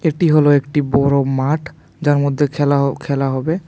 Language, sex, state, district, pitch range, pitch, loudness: Bengali, male, Tripura, West Tripura, 140-155 Hz, 145 Hz, -16 LUFS